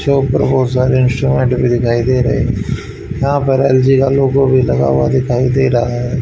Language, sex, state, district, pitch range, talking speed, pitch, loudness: Hindi, male, Haryana, Rohtak, 125-135 Hz, 205 wpm, 130 Hz, -13 LUFS